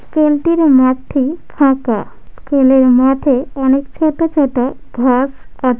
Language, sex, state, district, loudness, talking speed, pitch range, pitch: Bengali, female, West Bengal, Malda, -13 LUFS, 125 wpm, 255-295 Hz, 270 Hz